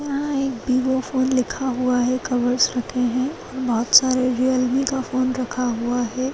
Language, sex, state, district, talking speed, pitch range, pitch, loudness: Hindi, female, Chhattisgarh, Kabirdham, 170 wpm, 250-260 Hz, 255 Hz, -21 LUFS